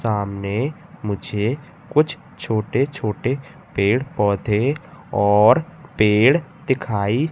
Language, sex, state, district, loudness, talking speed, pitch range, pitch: Hindi, male, Madhya Pradesh, Katni, -20 LUFS, 80 wpm, 105-150 Hz, 125 Hz